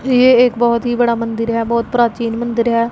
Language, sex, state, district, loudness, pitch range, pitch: Hindi, female, Punjab, Pathankot, -15 LUFS, 230-240 Hz, 235 Hz